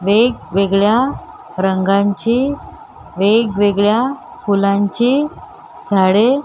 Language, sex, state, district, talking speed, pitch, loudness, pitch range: Marathi, female, Maharashtra, Mumbai Suburban, 45 wpm, 205 Hz, -15 LUFS, 195-240 Hz